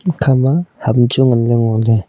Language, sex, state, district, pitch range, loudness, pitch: Wancho, male, Arunachal Pradesh, Longding, 115-135 Hz, -14 LUFS, 125 Hz